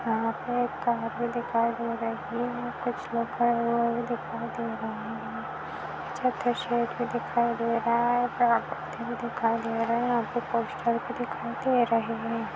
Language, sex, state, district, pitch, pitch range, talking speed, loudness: Hindi, female, Chhattisgarh, Rajnandgaon, 235 Hz, 230-245 Hz, 165 wpm, -29 LUFS